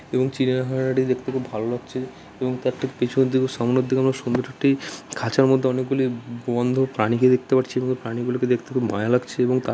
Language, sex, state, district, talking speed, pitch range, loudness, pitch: Bengali, male, West Bengal, Dakshin Dinajpur, 220 wpm, 125-130 Hz, -22 LUFS, 130 Hz